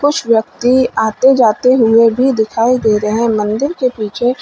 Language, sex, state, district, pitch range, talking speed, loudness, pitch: Hindi, female, Uttar Pradesh, Lalitpur, 220-255 Hz, 175 wpm, -13 LUFS, 235 Hz